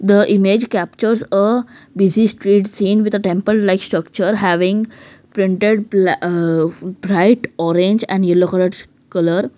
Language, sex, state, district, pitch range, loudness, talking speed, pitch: English, female, Gujarat, Valsad, 185-215 Hz, -15 LUFS, 140 wpm, 195 Hz